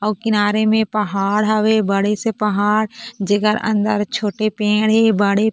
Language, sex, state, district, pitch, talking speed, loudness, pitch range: Chhattisgarhi, female, Chhattisgarh, Korba, 210 Hz, 165 wpm, -17 LUFS, 205-220 Hz